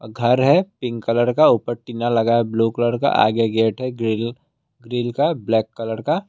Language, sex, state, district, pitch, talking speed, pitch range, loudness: Hindi, male, Assam, Kamrup Metropolitan, 120 Hz, 200 wpm, 115-130 Hz, -19 LUFS